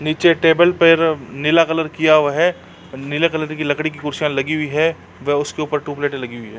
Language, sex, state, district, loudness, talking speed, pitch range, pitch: Hindi, male, Uttar Pradesh, Jalaun, -17 LUFS, 220 wpm, 145-160 Hz, 155 Hz